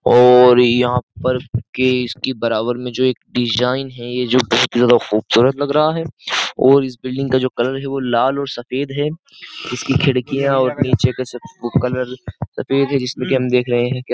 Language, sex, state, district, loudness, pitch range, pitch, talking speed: Hindi, male, Uttar Pradesh, Jyotiba Phule Nagar, -17 LUFS, 125-135 Hz, 125 Hz, 195 wpm